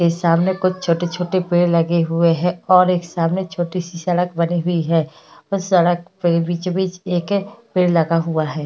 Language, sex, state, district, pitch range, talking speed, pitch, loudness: Hindi, female, Uttar Pradesh, Hamirpur, 170-185 Hz, 185 wpm, 175 Hz, -18 LUFS